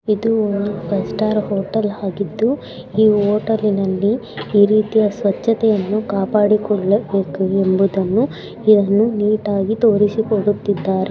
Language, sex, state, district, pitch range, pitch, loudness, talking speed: Kannada, female, Karnataka, Belgaum, 200-215 Hz, 205 Hz, -17 LUFS, 85 wpm